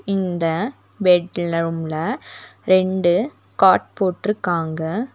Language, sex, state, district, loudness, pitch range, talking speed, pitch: Tamil, female, Tamil Nadu, Nilgiris, -20 LUFS, 165-205 Hz, 60 wpm, 180 Hz